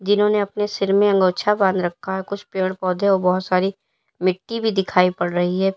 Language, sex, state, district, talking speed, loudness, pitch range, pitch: Hindi, female, Uttar Pradesh, Lalitpur, 210 wpm, -20 LUFS, 185-205 Hz, 190 Hz